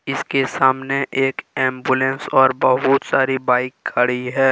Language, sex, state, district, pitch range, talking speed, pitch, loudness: Hindi, male, Jharkhand, Deoghar, 130-135 Hz, 130 wpm, 130 Hz, -18 LUFS